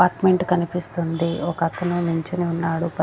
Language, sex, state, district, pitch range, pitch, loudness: Telugu, female, Andhra Pradesh, Sri Satya Sai, 165-180 Hz, 170 Hz, -22 LUFS